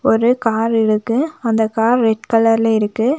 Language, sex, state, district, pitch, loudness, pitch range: Tamil, female, Tamil Nadu, Nilgiris, 225 Hz, -16 LUFS, 220-240 Hz